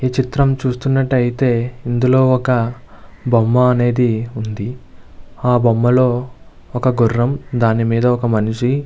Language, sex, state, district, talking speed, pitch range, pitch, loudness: Telugu, male, Andhra Pradesh, Visakhapatnam, 120 wpm, 115-130 Hz, 125 Hz, -16 LUFS